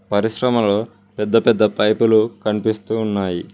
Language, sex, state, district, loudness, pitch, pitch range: Telugu, male, Telangana, Mahabubabad, -18 LUFS, 105 Hz, 100-110 Hz